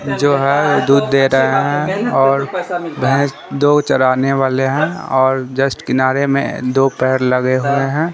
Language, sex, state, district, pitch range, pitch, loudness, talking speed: Hindi, male, Bihar, Katihar, 130-145 Hz, 135 Hz, -15 LUFS, 160 wpm